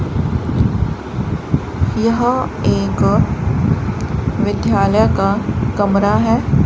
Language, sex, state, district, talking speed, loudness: Hindi, male, Rajasthan, Bikaner, 55 wpm, -16 LUFS